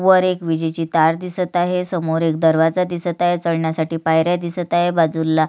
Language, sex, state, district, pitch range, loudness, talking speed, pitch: Marathi, female, Maharashtra, Sindhudurg, 160-175 Hz, -18 LUFS, 185 wpm, 170 Hz